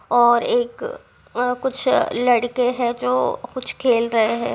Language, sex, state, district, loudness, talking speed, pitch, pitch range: Hindi, female, Uttar Pradesh, Hamirpur, -20 LUFS, 145 wpm, 245 Hz, 240-260 Hz